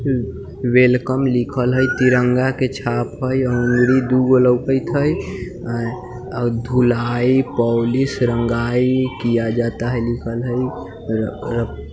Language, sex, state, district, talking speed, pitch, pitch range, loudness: Hindi, male, Bihar, Muzaffarpur, 100 wpm, 125 Hz, 120-130 Hz, -18 LUFS